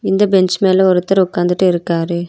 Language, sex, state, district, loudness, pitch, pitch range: Tamil, female, Tamil Nadu, Nilgiris, -14 LUFS, 185 Hz, 175-190 Hz